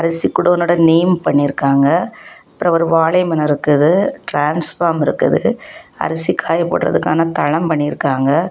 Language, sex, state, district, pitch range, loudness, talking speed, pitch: Tamil, female, Tamil Nadu, Kanyakumari, 150-175 Hz, -15 LUFS, 115 wpm, 165 Hz